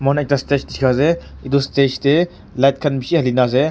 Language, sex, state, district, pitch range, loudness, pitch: Nagamese, male, Nagaland, Kohima, 130-145 Hz, -17 LUFS, 140 Hz